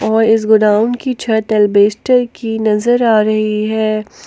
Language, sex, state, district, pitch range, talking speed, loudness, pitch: Hindi, female, Jharkhand, Palamu, 215-230 Hz, 155 wpm, -13 LUFS, 220 Hz